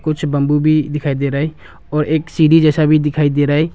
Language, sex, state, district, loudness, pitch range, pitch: Hindi, male, Arunachal Pradesh, Longding, -15 LUFS, 145-155 Hz, 150 Hz